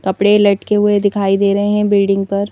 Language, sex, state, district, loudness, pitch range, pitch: Hindi, female, Madhya Pradesh, Bhopal, -14 LUFS, 200-205 Hz, 200 Hz